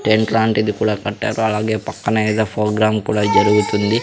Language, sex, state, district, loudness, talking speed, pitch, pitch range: Telugu, male, Andhra Pradesh, Sri Satya Sai, -17 LUFS, 150 wpm, 110 Hz, 105-110 Hz